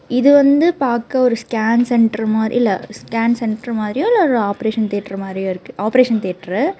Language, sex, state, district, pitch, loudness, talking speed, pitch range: Tamil, female, Karnataka, Bangalore, 230 Hz, -16 LUFS, 165 wpm, 215-255 Hz